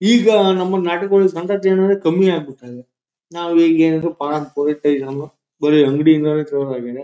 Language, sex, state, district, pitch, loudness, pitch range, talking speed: Kannada, male, Karnataka, Shimoga, 160 Hz, -16 LUFS, 145-185 Hz, 155 wpm